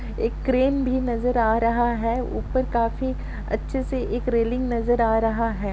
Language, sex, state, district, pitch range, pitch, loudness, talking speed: Hindi, female, Chhattisgarh, Kabirdham, 230-255 Hz, 240 Hz, -23 LUFS, 180 wpm